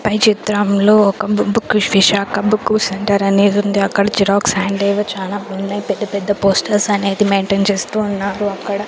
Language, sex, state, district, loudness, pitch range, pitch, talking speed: Telugu, female, Andhra Pradesh, Sri Satya Sai, -15 LUFS, 200-210 Hz, 200 Hz, 155 wpm